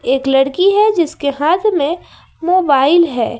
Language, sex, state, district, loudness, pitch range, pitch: Hindi, female, Jharkhand, Ranchi, -14 LUFS, 275-360 Hz, 320 Hz